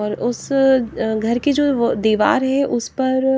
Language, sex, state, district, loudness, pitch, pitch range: Hindi, female, Haryana, Jhajjar, -18 LUFS, 260 Hz, 230-270 Hz